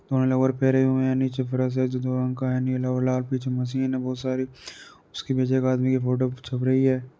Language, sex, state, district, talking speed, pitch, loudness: Hindi, male, Uttar Pradesh, Varanasi, 190 wpm, 130 Hz, -24 LUFS